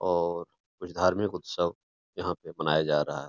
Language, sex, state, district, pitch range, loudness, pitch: Hindi, male, Uttar Pradesh, Etah, 75-90 Hz, -29 LUFS, 85 Hz